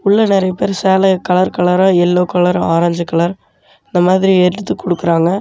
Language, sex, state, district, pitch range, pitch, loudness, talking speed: Tamil, male, Tamil Nadu, Namakkal, 175-190 Hz, 180 Hz, -13 LUFS, 155 wpm